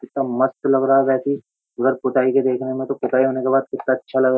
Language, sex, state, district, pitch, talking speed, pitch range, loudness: Hindi, male, Uttar Pradesh, Jyotiba Phule Nagar, 130 Hz, 300 wpm, 130-135 Hz, -19 LUFS